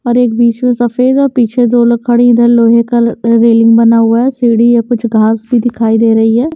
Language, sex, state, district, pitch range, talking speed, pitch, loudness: Hindi, female, Haryana, Jhajjar, 230-240 Hz, 240 wpm, 235 Hz, -9 LUFS